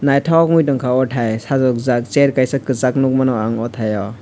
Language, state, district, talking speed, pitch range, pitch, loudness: Kokborok, Tripura, West Tripura, 185 wpm, 120-140 Hz, 130 Hz, -16 LUFS